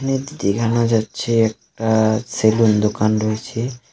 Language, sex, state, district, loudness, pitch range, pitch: Bengali, male, West Bengal, Alipurduar, -18 LUFS, 110-115 Hz, 110 Hz